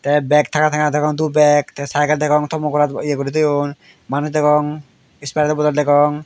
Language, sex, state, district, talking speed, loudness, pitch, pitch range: Chakma, male, Tripura, Dhalai, 190 wpm, -17 LUFS, 150 Hz, 145-150 Hz